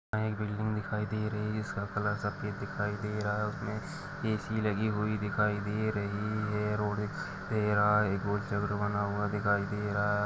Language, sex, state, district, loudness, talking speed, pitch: Hindi, male, Chhattisgarh, Jashpur, -32 LUFS, 195 wpm, 105 Hz